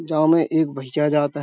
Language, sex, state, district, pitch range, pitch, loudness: Hindi, male, Uttar Pradesh, Budaun, 145-160 Hz, 150 Hz, -20 LUFS